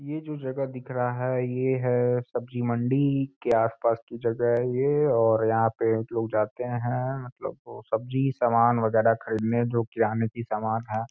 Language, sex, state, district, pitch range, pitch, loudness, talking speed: Hindi, male, Uttar Pradesh, Gorakhpur, 115-125 Hz, 120 Hz, -26 LUFS, 180 wpm